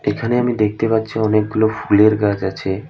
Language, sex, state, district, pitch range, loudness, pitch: Bengali, male, West Bengal, Alipurduar, 105-110 Hz, -17 LUFS, 110 Hz